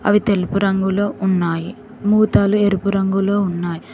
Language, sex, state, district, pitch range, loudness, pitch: Telugu, female, Telangana, Mahabubabad, 190-205 Hz, -18 LUFS, 195 Hz